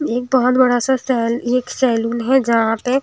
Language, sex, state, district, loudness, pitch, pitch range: Hindi, female, Himachal Pradesh, Shimla, -17 LUFS, 250 Hz, 235-260 Hz